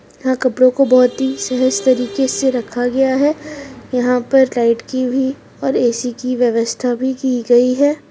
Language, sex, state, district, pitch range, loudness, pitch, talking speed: Hindi, female, Rajasthan, Churu, 245-265 Hz, -16 LUFS, 255 Hz, 180 wpm